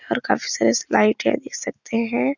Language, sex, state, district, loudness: Hindi, female, Uttar Pradesh, Etah, -21 LUFS